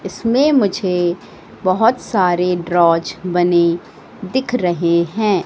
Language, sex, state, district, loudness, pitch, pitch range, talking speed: Hindi, female, Madhya Pradesh, Katni, -16 LUFS, 185 Hz, 175-215 Hz, 100 wpm